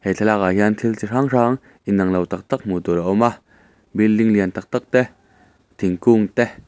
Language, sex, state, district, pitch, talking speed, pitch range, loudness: Mizo, male, Mizoram, Aizawl, 105 Hz, 205 wpm, 95-120 Hz, -19 LUFS